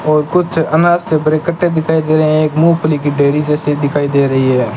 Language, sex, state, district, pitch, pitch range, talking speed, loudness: Hindi, male, Rajasthan, Bikaner, 155 Hz, 145-160 Hz, 240 wpm, -13 LUFS